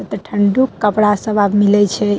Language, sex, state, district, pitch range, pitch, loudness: Maithili, female, Bihar, Madhepura, 205-210 Hz, 205 Hz, -14 LUFS